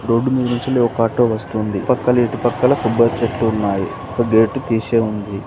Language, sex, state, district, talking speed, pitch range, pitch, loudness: Telugu, male, Andhra Pradesh, Srikakulam, 145 wpm, 110-125 Hz, 115 Hz, -17 LUFS